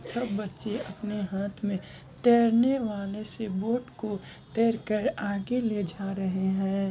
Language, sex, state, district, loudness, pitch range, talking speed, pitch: Hindi, female, Bihar, Madhepura, -29 LUFS, 195-230 Hz, 150 wpm, 210 Hz